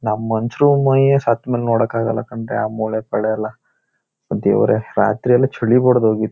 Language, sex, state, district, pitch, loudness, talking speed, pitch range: Kannada, male, Karnataka, Shimoga, 115 Hz, -17 LUFS, 150 wpm, 110-125 Hz